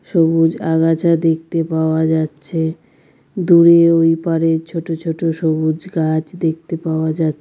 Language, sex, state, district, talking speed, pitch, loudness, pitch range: Bengali, female, West Bengal, Dakshin Dinajpur, 120 wpm, 165 Hz, -16 LUFS, 160-165 Hz